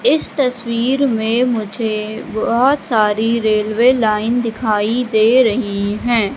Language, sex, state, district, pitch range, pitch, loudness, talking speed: Hindi, female, Madhya Pradesh, Katni, 215-245 Hz, 230 Hz, -16 LUFS, 115 wpm